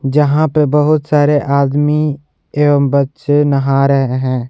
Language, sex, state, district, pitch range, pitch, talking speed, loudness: Hindi, male, Jharkhand, Ranchi, 140-150 Hz, 145 Hz, 135 wpm, -13 LUFS